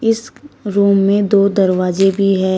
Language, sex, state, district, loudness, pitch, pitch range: Hindi, female, Uttar Pradesh, Shamli, -14 LUFS, 200 Hz, 195-205 Hz